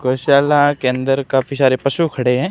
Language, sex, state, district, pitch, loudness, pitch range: Hindi, male, Rajasthan, Barmer, 135 Hz, -16 LUFS, 130-145 Hz